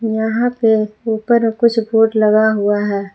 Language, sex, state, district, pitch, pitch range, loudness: Hindi, female, Jharkhand, Palamu, 220 Hz, 215-225 Hz, -15 LUFS